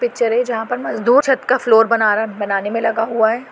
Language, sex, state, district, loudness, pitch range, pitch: Hindi, female, Goa, North and South Goa, -16 LUFS, 220-245 Hz, 225 Hz